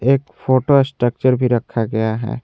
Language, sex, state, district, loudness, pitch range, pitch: Hindi, male, Jharkhand, Garhwa, -17 LUFS, 115-130 Hz, 125 Hz